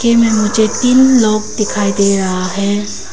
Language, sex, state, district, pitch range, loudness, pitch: Hindi, female, Arunachal Pradesh, Papum Pare, 200-230 Hz, -13 LUFS, 215 Hz